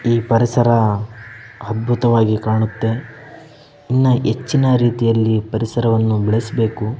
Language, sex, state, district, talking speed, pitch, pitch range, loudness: Kannada, male, Karnataka, Bellary, 85 wpm, 115 Hz, 110-125 Hz, -17 LUFS